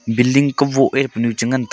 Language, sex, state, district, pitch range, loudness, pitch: Wancho, male, Arunachal Pradesh, Longding, 115-135 Hz, -16 LUFS, 130 Hz